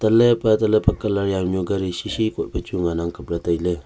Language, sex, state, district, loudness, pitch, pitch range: Wancho, male, Arunachal Pradesh, Longding, -21 LUFS, 95 Hz, 85-110 Hz